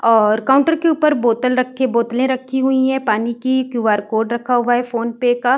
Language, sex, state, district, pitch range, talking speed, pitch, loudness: Hindi, female, Uttar Pradesh, Varanasi, 235-260 Hz, 205 wpm, 245 Hz, -17 LUFS